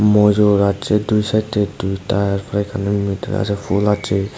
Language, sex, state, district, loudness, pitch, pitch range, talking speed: Bengali, male, Tripura, Unakoti, -18 LUFS, 100 Hz, 100-105 Hz, 135 wpm